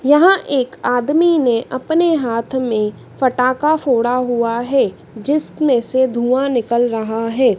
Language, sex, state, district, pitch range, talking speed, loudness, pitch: Hindi, female, Madhya Pradesh, Dhar, 235-280 Hz, 135 wpm, -16 LUFS, 255 Hz